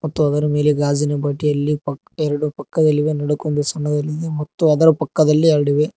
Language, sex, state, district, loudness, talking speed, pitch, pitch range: Kannada, male, Karnataka, Koppal, -18 LUFS, 130 wpm, 150 Hz, 145-155 Hz